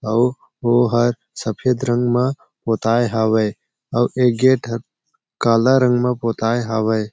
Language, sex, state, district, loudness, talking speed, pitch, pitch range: Chhattisgarhi, male, Chhattisgarh, Jashpur, -18 LUFS, 145 wpm, 120 Hz, 115-125 Hz